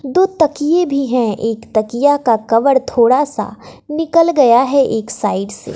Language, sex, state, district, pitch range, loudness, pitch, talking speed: Hindi, female, Bihar, West Champaran, 225-290 Hz, -14 LUFS, 265 Hz, 165 wpm